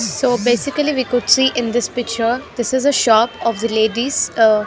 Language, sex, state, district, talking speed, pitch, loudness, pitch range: English, female, Haryana, Rohtak, 220 wpm, 240 Hz, -16 LUFS, 230-260 Hz